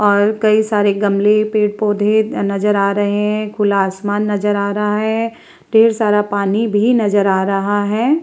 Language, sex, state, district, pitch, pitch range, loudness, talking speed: Hindi, female, Bihar, Vaishali, 210 Hz, 205-215 Hz, -15 LUFS, 175 wpm